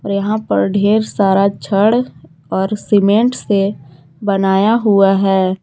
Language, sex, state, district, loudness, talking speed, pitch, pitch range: Hindi, female, Jharkhand, Garhwa, -14 LUFS, 115 wpm, 200 Hz, 190-210 Hz